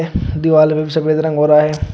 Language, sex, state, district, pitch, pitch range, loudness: Hindi, male, Uttar Pradesh, Shamli, 155 Hz, 150-160 Hz, -14 LUFS